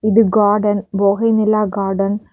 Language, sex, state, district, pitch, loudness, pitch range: Tamil, female, Tamil Nadu, Kanyakumari, 205 Hz, -15 LUFS, 200-215 Hz